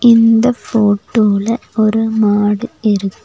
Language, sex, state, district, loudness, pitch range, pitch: Tamil, female, Tamil Nadu, Nilgiris, -13 LUFS, 205-230 Hz, 220 Hz